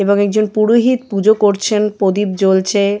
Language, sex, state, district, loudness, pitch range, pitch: Bengali, female, West Bengal, Jalpaiguri, -14 LUFS, 200-215 Hz, 205 Hz